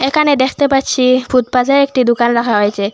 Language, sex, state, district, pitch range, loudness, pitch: Bengali, female, Assam, Hailakandi, 235-270 Hz, -13 LUFS, 255 Hz